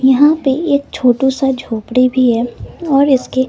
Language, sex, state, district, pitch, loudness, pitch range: Hindi, female, Bihar, West Champaran, 265 Hz, -14 LUFS, 255-280 Hz